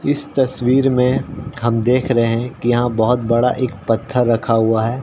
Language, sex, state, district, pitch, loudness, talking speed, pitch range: Hindi, male, Uttar Pradesh, Ghazipur, 120 Hz, -17 LUFS, 190 wpm, 115-130 Hz